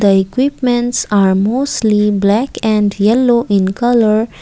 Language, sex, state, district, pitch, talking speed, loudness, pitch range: English, female, Assam, Kamrup Metropolitan, 215 Hz, 120 wpm, -13 LUFS, 205-240 Hz